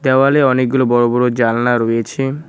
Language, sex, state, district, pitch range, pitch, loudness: Bengali, male, West Bengal, Cooch Behar, 120-135 Hz, 125 Hz, -14 LUFS